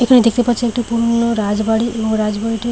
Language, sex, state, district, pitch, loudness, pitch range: Bengali, female, West Bengal, Paschim Medinipur, 230 Hz, -16 LUFS, 220-240 Hz